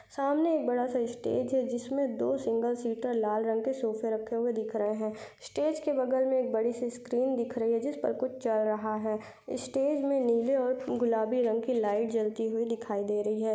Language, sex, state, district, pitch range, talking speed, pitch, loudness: Hindi, female, Uttar Pradesh, Etah, 220-260 Hz, 220 wpm, 235 Hz, -30 LUFS